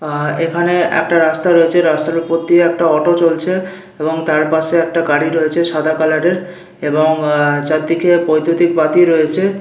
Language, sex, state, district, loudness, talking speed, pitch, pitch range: Bengali, male, West Bengal, Paschim Medinipur, -14 LUFS, 150 wpm, 165 Hz, 155-175 Hz